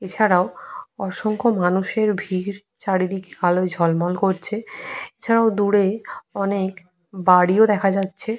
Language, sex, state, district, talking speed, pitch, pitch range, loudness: Bengali, female, West Bengal, Purulia, 100 wpm, 195 Hz, 185-210 Hz, -20 LUFS